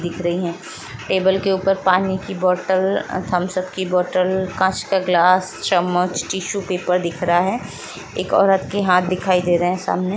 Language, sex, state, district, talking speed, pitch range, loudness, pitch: Hindi, female, Uttar Pradesh, Jalaun, 175 wpm, 180-190 Hz, -19 LUFS, 185 Hz